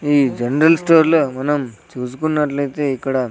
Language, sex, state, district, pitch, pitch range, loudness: Telugu, male, Andhra Pradesh, Sri Satya Sai, 145 Hz, 130-155 Hz, -17 LUFS